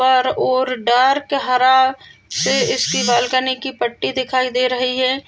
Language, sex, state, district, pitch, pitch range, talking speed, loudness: Hindi, female, Maharashtra, Chandrapur, 255 Hz, 255-260 Hz, 150 wpm, -17 LUFS